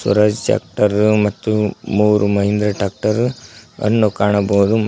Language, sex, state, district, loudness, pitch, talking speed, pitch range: Kannada, male, Karnataka, Koppal, -16 LUFS, 105 Hz, 110 wpm, 100-110 Hz